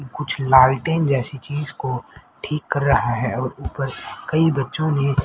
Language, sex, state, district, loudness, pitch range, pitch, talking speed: Hindi, male, Haryana, Rohtak, -20 LUFS, 130-150 Hz, 140 Hz, 160 wpm